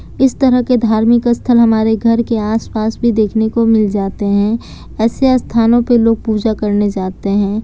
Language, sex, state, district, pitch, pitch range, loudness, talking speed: Hindi, female, Bihar, Kishanganj, 225 Hz, 215-235 Hz, -13 LUFS, 180 wpm